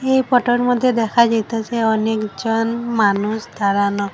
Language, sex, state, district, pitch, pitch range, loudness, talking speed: Bengali, female, Assam, Hailakandi, 225 Hz, 215-240 Hz, -18 LUFS, 115 wpm